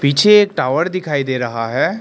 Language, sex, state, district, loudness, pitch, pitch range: Hindi, male, Arunachal Pradesh, Lower Dibang Valley, -15 LUFS, 140 Hz, 130-185 Hz